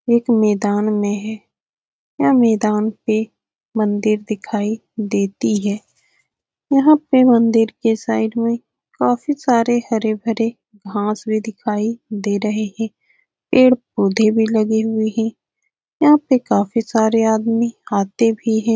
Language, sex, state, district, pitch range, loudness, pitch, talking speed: Hindi, female, Bihar, Saran, 215-235 Hz, -17 LUFS, 220 Hz, 125 wpm